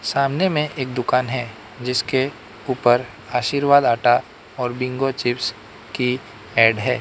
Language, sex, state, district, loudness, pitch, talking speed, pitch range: Hindi, male, Arunachal Pradesh, Lower Dibang Valley, -20 LUFS, 125 Hz, 130 wpm, 120-130 Hz